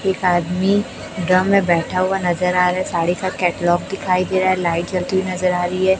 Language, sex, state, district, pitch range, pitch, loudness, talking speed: Hindi, male, Chhattisgarh, Raipur, 175-190 Hz, 185 Hz, -18 LUFS, 240 wpm